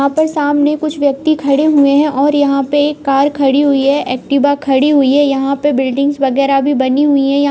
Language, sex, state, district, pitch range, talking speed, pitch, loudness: Hindi, female, Uttar Pradesh, Budaun, 275-290 Hz, 240 wpm, 280 Hz, -12 LUFS